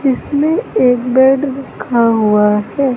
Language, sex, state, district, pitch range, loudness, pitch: Hindi, female, Madhya Pradesh, Katni, 230-275 Hz, -13 LUFS, 260 Hz